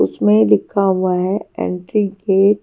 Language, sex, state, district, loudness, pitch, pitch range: Hindi, female, Haryana, Charkhi Dadri, -16 LUFS, 190 Hz, 180-200 Hz